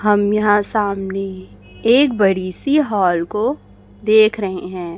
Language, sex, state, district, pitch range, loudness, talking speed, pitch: Hindi, male, Chhattisgarh, Raipur, 180-215 Hz, -17 LUFS, 135 wpm, 195 Hz